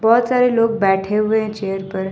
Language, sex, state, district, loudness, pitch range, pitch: Hindi, female, Jharkhand, Ranchi, -17 LUFS, 195-230 Hz, 215 Hz